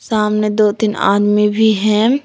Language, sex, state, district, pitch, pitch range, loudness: Hindi, female, Jharkhand, Palamu, 215 Hz, 210-220 Hz, -14 LUFS